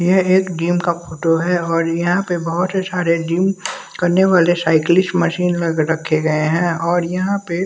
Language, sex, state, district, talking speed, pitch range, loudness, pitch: Hindi, male, Bihar, West Champaran, 195 wpm, 165-180 Hz, -17 LUFS, 175 Hz